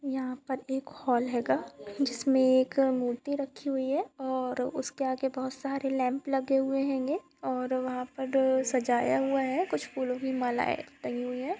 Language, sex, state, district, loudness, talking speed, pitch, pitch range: Hindi, female, Goa, North and South Goa, -30 LUFS, 170 wpm, 265 Hz, 255-270 Hz